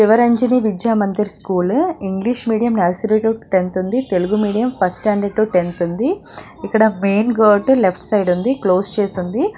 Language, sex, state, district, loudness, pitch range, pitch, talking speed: Telugu, female, Telangana, Nalgonda, -17 LUFS, 190-235 Hz, 210 Hz, 165 wpm